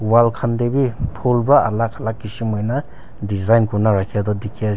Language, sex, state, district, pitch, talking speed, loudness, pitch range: Nagamese, male, Nagaland, Kohima, 110 Hz, 215 wpm, -19 LUFS, 105-120 Hz